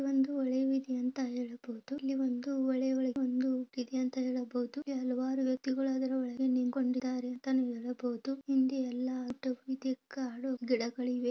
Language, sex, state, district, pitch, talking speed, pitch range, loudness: Kannada, female, Karnataka, Bellary, 255 Hz, 110 wpm, 250-265 Hz, -34 LUFS